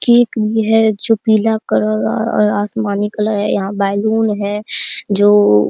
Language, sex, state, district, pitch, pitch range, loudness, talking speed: Hindi, female, Bihar, Araria, 210 Hz, 200-220 Hz, -15 LUFS, 160 wpm